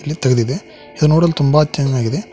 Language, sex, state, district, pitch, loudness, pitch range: Kannada, male, Karnataka, Koppal, 145 Hz, -15 LUFS, 130-155 Hz